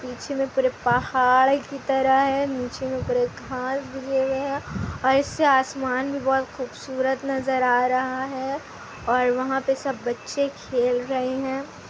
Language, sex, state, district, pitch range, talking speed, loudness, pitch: Hindi, female, Bihar, Kishanganj, 255-270 Hz, 160 wpm, -24 LUFS, 265 Hz